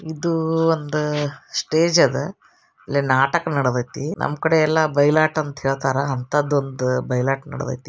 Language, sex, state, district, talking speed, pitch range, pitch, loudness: Kannada, male, Karnataka, Bijapur, 120 wpm, 135-155 Hz, 145 Hz, -20 LUFS